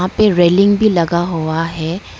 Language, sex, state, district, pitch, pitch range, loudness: Hindi, female, Arunachal Pradesh, Lower Dibang Valley, 175 Hz, 165-200 Hz, -14 LUFS